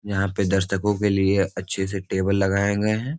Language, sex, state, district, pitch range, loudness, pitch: Hindi, male, Bihar, Supaul, 95-105 Hz, -22 LUFS, 100 Hz